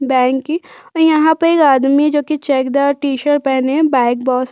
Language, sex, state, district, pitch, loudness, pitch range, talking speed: Hindi, female, Uttar Pradesh, Budaun, 280 Hz, -14 LUFS, 260-310 Hz, 200 wpm